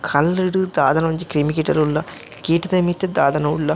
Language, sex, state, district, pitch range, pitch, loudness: Tulu, male, Karnataka, Dakshina Kannada, 150-180 Hz, 160 Hz, -19 LUFS